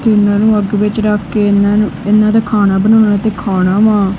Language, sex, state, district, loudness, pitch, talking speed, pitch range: Punjabi, female, Punjab, Kapurthala, -12 LUFS, 210 Hz, 215 wpm, 205-215 Hz